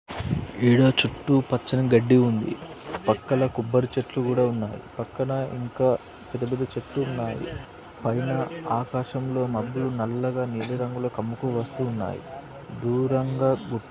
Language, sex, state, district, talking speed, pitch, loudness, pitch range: Telugu, male, Andhra Pradesh, Srikakulam, 105 wpm, 125 Hz, -25 LUFS, 115-130 Hz